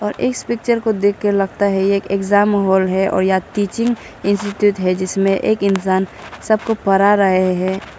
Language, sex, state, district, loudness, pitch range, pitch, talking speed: Hindi, female, Arunachal Pradesh, Lower Dibang Valley, -16 LUFS, 190-210 Hz, 200 Hz, 175 wpm